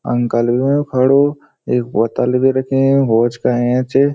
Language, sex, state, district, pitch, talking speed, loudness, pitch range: Garhwali, male, Uttarakhand, Uttarkashi, 130 Hz, 175 wpm, -15 LUFS, 120-135 Hz